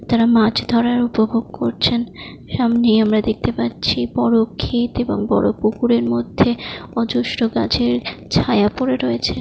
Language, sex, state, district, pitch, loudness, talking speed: Bengali, female, West Bengal, Jalpaiguri, 220 Hz, -18 LUFS, 130 wpm